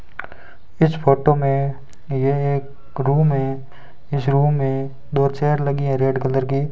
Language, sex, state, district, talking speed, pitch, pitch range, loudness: Hindi, male, Rajasthan, Bikaner, 160 wpm, 140 Hz, 135-140 Hz, -20 LUFS